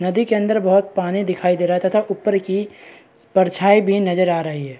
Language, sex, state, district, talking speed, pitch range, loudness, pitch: Hindi, female, Bihar, East Champaran, 225 wpm, 180-205 Hz, -18 LUFS, 190 Hz